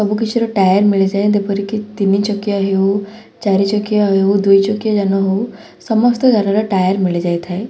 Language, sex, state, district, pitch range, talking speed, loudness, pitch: Odia, female, Odisha, Khordha, 195-210 Hz, 150 wpm, -15 LUFS, 200 Hz